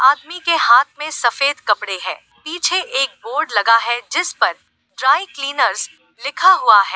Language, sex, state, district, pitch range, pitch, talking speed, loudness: Hindi, female, Uttar Pradesh, Lalitpur, 240-340 Hz, 280 Hz, 165 wpm, -16 LUFS